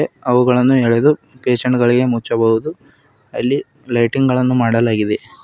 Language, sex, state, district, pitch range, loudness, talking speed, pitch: Kannada, male, Karnataka, Bidar, 115-135 Hz, -15 LUFS, 100 wpm, 125 Hz